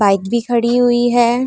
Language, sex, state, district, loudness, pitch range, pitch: Hindi, female, Uttar Pradesh, Muzaffarnagar, -14 LUFS, 235-240 Hz, 240 Hz